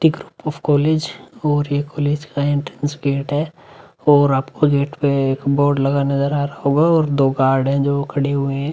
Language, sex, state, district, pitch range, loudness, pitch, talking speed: Hindi, male, Uttar Pradesh, Muzaffarnagar, 140-145 Hz, -18 LUFS, 145 Hz, 200 wpm